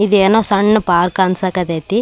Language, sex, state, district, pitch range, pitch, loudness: Kannada, male, Karnataka, Raichur, 180-210 Hz, 195 Hz, -14 LUFS